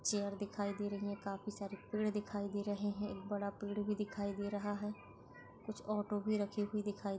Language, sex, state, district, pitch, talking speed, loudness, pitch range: Marathi, female, Maharashtra, Sindhudurg, 205 Hz, 225 wpm, -41 LUFS, 200-210 Hz